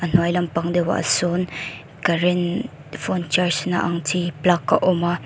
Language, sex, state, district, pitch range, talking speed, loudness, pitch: Mizo, female, Mizoram, Aizawl, 170-180 Hz, 170 wpm, -21 LUFS, 175 Hz